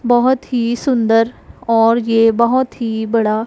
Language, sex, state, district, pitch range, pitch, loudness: Hindi, female, Punjab, Pathankot, 225-240 Hz, 230 Hz, -15 LUFS